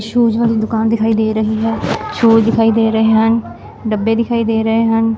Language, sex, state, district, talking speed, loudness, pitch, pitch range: Punjabi, female, Punjab, Fazilka, 195 wpm, -14 LUFS, 225 Hz, 220-225 Hz